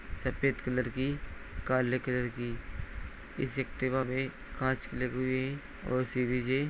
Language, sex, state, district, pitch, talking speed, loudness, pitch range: Hindi, male, Bihar, Purnia, 130 Hz, 145 wpm, -34 LUFS, 125-130 Hz